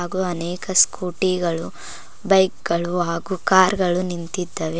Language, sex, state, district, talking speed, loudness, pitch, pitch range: Kannada, female, Karnataka, Koppal, 115 wpm, -20 LUFS, 180 Hz, 170-185 Hz